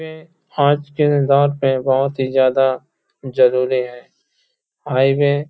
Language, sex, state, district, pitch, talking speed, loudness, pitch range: Hindi, male, Uttar Pradesh, Hamirpur, 140 Hz, 130 wpm, -17 LUFS, 130-145 Hz